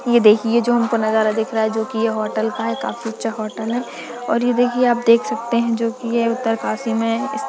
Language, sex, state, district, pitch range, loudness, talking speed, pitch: Hindi, female, Uttarakhand, Uttarkashi, 220-235 Hz, -19 LUFS, 265 wpm, 230 Hz